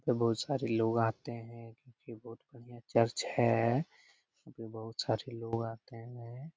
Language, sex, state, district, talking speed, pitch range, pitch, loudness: Hindi, male, Bihar, Lakhisarai, 135 wpm, 115-120 Hz, 115 Hz, -34 LUFS